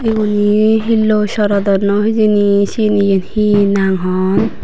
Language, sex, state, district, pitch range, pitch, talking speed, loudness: Chakma, female, Tripura, Unakoti, 200-215 Hz, 205 Hz, 130 wpm, -13 LUFS